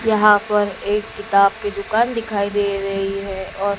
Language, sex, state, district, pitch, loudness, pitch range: Hindi, female, Maharashtra, Gondia, 205 Hz, -19 LUFS, 200-210 Hz